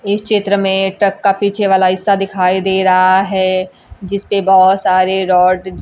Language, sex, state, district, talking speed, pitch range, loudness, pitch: Hindi, female, Bihar, Kaimur, 185 wpm, 185-200 Hz, -13 LUFS, 190 Hz